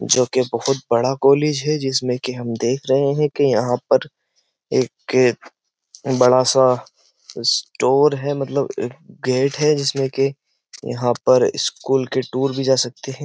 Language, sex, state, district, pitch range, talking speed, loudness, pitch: Hindi, male, Uttar Pradesh, Jyotiba Phule Nagar, 125-140 Hz, 155 wpm, -19 LUFS, 135 Hz